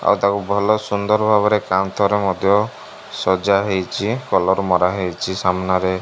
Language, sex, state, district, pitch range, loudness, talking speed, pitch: Odia, male, Odisha, Malkangiri, 95-105 Hz, -18 LUFS, 120 wpm, 100 Hz